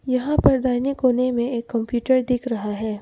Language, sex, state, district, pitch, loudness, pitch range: Hindi, female, Arunachal Pradesh, Papum Pare, 245 Hz, -21 LUFS, 235-255 Hz